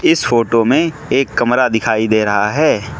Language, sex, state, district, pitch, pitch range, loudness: Hindi, male, Manipur, Imphal West, 120 Hz, 110-140 Hz, -14 LUFS